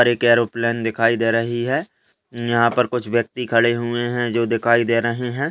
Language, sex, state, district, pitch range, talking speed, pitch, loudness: Hindi, male, Rajasthan, Churu, 115-120 Hz, 195 wpm, 120 Hz, -19 LUFS